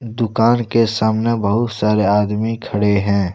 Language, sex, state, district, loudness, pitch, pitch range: Hindi, male, Jharkhand, Deoghar, -17 LUFS, 110 Hz, 105-115 Hz